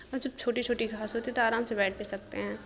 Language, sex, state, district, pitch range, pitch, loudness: Hindi, female, Bihar, Kishanganj, 200-240 Hz, 225 Hz, -31 LUFS